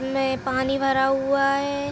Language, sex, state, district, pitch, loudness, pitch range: Hindi, female, Uttar Pradesh, Ghazipur, 270 Hz, -22 LUFS, 265-275 Hz